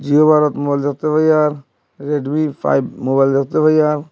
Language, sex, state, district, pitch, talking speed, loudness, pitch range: Bengali, male, Assam, Hailakandi, 150 Hz, 160 wpm, -16 LUFS, 140-155 Hz